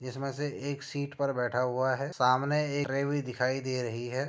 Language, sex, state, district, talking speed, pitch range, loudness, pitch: Hindi, male, Uttar Pradesh, Jyotiba Phule Nagar, 225 wpm, 125-140 Hz, -31 LUFS, 135 Hz